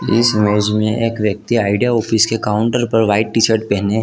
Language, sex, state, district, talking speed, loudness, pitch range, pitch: Hindi, male, Jharkhand, Jamtara, 210 wpm, -15 LUFS, 105-115 Hz, 110 Hz